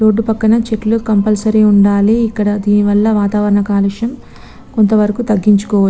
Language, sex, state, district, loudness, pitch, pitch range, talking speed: Telugu, female, Telangana, Nalgonda, -13 LUFS, 210 Hz, 205-220 Hz, 140 wpm